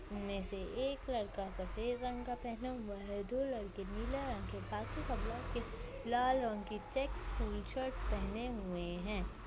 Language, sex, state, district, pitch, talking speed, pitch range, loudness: Hindi, male, Maharashtra, Nagpur, 220 Hz, 170 wpm, 200-250 Hz, -41 LUFS